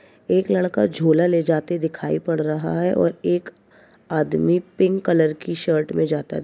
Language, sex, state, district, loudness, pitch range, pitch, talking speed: Hindi, male, Uttar Pradesh, Jyotiba Phule Nagar, -21 LUFS, 155-175 Hz, 165 Hz, 175 wpm